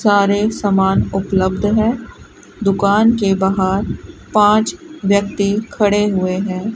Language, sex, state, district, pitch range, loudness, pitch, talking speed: Hindi, female, Rajasthan, Bikaner, 195-210 Hz, -16 LUFS, 200 Hz, 105 wpm